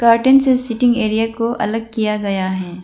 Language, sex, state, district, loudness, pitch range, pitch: Hindi, female, Arunachal Pradesh, Lower Dibang Valley, -16 LUFS, 210-240 Hz, 225 Hz